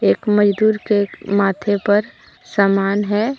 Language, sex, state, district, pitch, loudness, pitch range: Hindi, female, Jharkhand, Deoghar, 205 Hz, -17 LUFS, 200-210 Hz